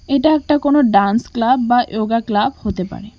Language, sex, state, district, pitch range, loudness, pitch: Bengali, female, West Bengal, Cooch Behar, 210-280 Hz, -16 LUFS, 235 Hz